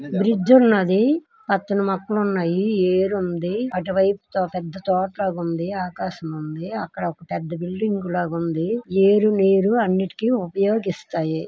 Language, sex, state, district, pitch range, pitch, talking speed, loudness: Telugu, male, Andhra Pradesh, Srikakulam, 175-205 Hz, 190 Hz, 115 wpm, -21 LUFS